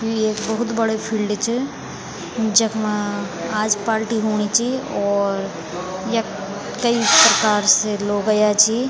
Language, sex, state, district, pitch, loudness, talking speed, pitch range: Garhwali, female, Uttarakhand, Tehri Garhwal, 215 Hz, -19 LUFS, 130 wpm, 205-225 Hz